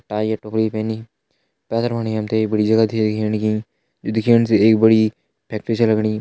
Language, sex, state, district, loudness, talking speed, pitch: Hindi, male, Uttarakhand, Tehri Garhwal, -18 LUFS, 205 wpm, 110 Hz